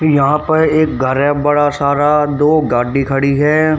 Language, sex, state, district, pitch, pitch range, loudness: Hindi, male, Haryana, Rohtak, 145 Hz, 140-155 Hz, -13 LUFS